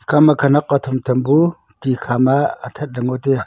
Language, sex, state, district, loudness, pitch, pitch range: Wancho, male, Arunachal Pradesh, Longding, -17 LUFS, 135 Hz, 130-150 Hz